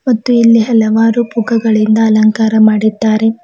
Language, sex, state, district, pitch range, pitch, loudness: Kannada, female, Karnataka, Bidar, 220-230 Hz, 225 Hz, -10 LUFS